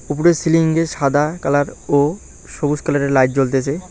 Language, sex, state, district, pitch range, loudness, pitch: Bengali, male, West Bengal, Alipurduar, 140-165 Hz, -17 LUFS, 145 Hz